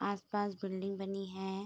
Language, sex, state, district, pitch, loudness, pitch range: Hindi, female, Bihar, Saharsa, 195 Hz, -39 LUFS, 190-200 Hz